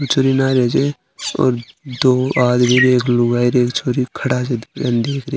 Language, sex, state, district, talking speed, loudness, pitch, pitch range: Marwari, male, Rajasthan, Nagaur, 145 wpm, -16 LUFS, 125 Hz, 125-135 Hz